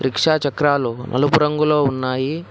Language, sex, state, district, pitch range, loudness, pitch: Telugu, male, Telangana, Hyderabad, 130-150 Hz, -18 LUFS, 145 Hz